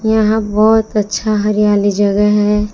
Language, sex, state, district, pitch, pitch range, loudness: Hindi, female, Jharkhand, Palamu, 210 Hz, 205-215 Hz, -13 LUFS